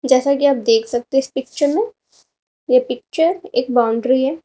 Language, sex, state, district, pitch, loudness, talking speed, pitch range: Hindi, female, Uttar Pradesh, Lalitpur, 270 Hz, -17 LUFS, 190 wpm, 250-325 Hz